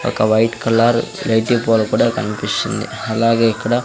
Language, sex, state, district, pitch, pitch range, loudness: Telugu, male, Andhra Pradesh, Sri Satya Sai, 115 Hz, 110-115 Hz, -16 LUFS